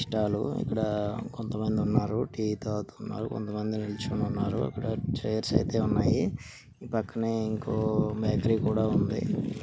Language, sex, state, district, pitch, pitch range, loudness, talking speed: Telugu, male, Andhra Pradesh, Guntur, 110 Hz, 105-110 Hz, -29 LUFS, 125 wpm